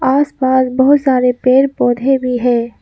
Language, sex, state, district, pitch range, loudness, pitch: Hindi, female, Arunachal Pradesh, Lower Dibang Valley, 250-270 Hz, -13 LUFS, 260 Hz